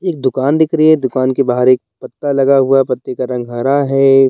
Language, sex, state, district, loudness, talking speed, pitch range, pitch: Hindi, male, Bihar, Bhagalpur, -13 LUFS, 250 wpm, 130-140 Hz, 135 Hz